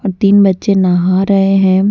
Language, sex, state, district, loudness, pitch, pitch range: Hindi, female, Jharkhand, Deoghar, -11 LUFS, 195 Hz, 185-200 Hz